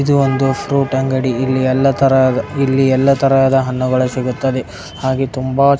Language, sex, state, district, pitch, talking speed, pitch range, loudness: Kannada, male, Karnataka, Dharwad, 135 Hz, 145 wpm, 130-135 Hz, -15 LUFS